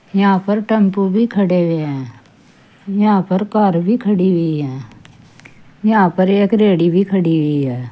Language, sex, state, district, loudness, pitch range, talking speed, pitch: Hindi, female, Uttar Pradesh, Saharanpur, -15 LUFS, 145-200 Hz, 165 wpm, 185 Hz